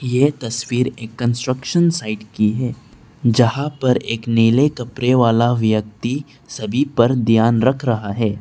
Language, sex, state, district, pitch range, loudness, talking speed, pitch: Hindi, male, Arunachal Pradesh, Lower Dibang Valley, 115-130 Hz, -18 LUFS, 145 wpm, 120 Hz